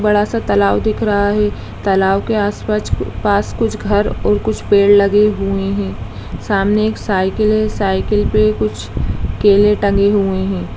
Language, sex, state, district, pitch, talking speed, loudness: Hindi, female, Bihar, Darbhanga, 195 Hz, 155 wpm, -15 LUFS